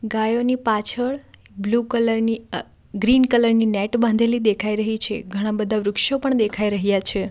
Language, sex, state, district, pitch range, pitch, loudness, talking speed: Gujarati, female, Gujarat, Valsad, 210-235 Hz, 220 Hz, -19 LUFS, 155 wpm